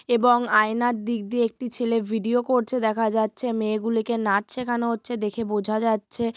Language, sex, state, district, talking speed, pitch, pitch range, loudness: Bengali, female, West Bengal, Purulia, 170 wpm, 230 Hz, 220-240 Hz, -24 LUFS